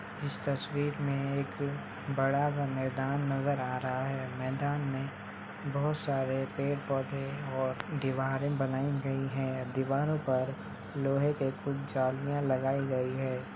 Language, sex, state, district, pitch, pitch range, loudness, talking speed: Hindi, female, Bihar, Saharsa, 135 Hz, 130-140 Hz, -33 LUFS, 140 wpm